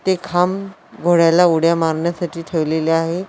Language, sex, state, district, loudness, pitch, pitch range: Marathi, female, Maharashtra, Washim, -17 LUFS, 170 Hz, 165-180 Hz